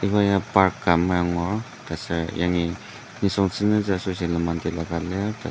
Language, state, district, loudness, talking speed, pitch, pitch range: Ao, Nagaland, Dimapur, -23 LUFS, 175 wpm, 95 Hz, 85-100 Hz